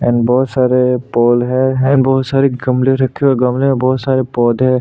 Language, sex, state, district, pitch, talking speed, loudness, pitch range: Hindi, male, Chhattisgarh, Sukma, 130 Hz, 225 wpm, -13 LUFS, 125-135 Hz